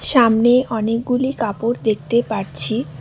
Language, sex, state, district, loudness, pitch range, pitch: Bengali, female, West Bengal, Alipurduar, -18 LUFS, 215-240 Hz, 230 Hz